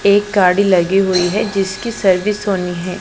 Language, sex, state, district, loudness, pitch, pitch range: Hindi, female, Punjab, Pathankot, -15 LUFS, 195 Hz, 185-205 Hz